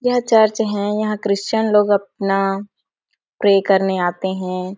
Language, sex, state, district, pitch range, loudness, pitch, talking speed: Hindi, female, Chhattisgarh, Sarguja, 195-215 Hz, -18 LUFS, 200 Hz, 140 wpm